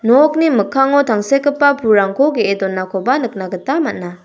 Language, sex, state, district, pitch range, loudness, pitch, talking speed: Garo, female, Meghalaya, South Garo Hills, 195-285 Hz, -15 LUFS, 235 Hz, 125 wpm